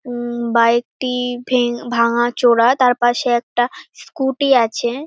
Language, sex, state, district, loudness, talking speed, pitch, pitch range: Bengali, female, West Bengal, North 24 Parganas, -17 LUFS, 120 wpm, 240 Hz, 240-255 Hz